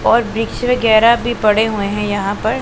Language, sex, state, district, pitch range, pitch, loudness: Hindi, female, Punjab, Pathankot, 210-235 Hz, 220 Hz, -15 LUFS